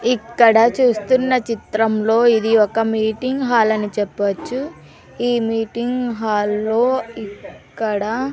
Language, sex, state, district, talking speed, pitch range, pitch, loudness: Telugu, female, Andhra Pradesh, Sri Satya Sai, 95 wpm, 220-245 Hz, 225 Hz, -18 LUFS